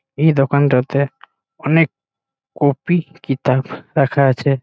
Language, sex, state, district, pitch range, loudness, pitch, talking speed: Bengali, male, West Bengal, Malda, 135-150 Hz, -17 LUFS, 140 Hz, 90 wpm